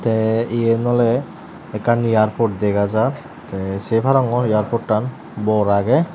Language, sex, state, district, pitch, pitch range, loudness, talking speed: Chakma, male, Tripura, Dhalai, 115 Hz, 105-120 Hz, -18 LUFS, 115 wpm